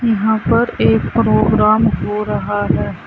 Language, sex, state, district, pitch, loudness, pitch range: Hindi, female, Uttar Pradesh, Saharanpur, 215 Hz, -15 LUFS, 210-225 Hz